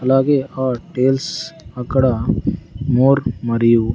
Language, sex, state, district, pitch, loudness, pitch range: Telugu, male, Andhra Pradesh, Sri Satya Sai, 130 Hz, -18 LUFS, 120-135 Hz